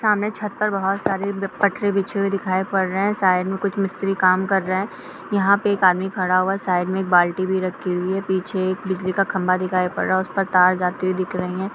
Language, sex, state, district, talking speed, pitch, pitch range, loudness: Hindi, female, Bihar, Kishanganj, 255 wpm, 190 Hz, 185-195 Hz, -21 LUFS